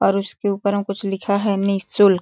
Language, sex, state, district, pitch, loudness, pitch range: Hindi, female, Chhattisgarh, Sarguja, 200 Hz, -20 LUFS, 195-200 Hz